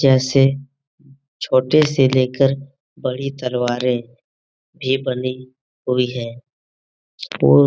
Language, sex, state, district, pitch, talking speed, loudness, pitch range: Hindi, male, Bihar, Jamui, 130 Hz, 95 wpm, -19 LUFS, 120-135 Hz